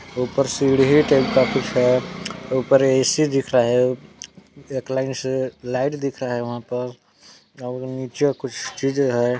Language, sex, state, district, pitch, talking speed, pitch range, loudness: Hindi, male, Chhattisgarh, Balrampur, 130 Hz, 155 wpm, 125-140 Hz, -20 LUFS